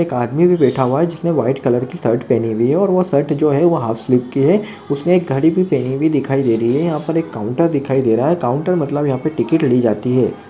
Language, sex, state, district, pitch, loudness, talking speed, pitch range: Hindi, male, Maharashtra, Pune, 140 Hz, -16 LUFS, 285 wpm, 125-170 Hz